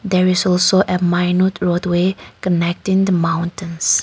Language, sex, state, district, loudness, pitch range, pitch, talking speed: English, female, Nagaland, Kohima, -17 LUFS, 175-185 Hz, 180 Hz, 135 wpm